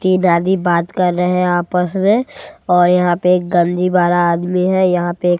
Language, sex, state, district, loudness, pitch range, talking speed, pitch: Hindi, male, Bihar, West Champaran, -15 LUFS, 175-185 Hz, 200 wpm, 180 Hz